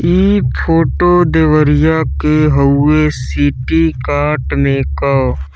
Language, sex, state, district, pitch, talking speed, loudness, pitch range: Bhojpuri, female, Uttar Pradesh, Deoria, 150 Hz, 75 wpm, -12 LUFS, 125-160 Hz